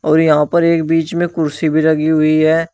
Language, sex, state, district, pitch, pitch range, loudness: Hindi, male, Uttar Pradesh, Shamli, 160 Hz, 155-165 Hz, -14 LUFS